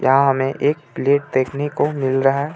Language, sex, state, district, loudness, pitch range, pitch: Hindi, male, Jharkhand, Ranchi, -19 LUFS, 135-145 Hz, 140 Hz